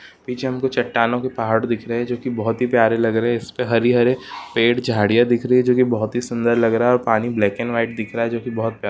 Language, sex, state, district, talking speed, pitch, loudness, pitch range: Hindi, male, Uttarakhand, Uttarkashi, 305 wpm, 120 Hz, -19 LUFS, 115-125 Hz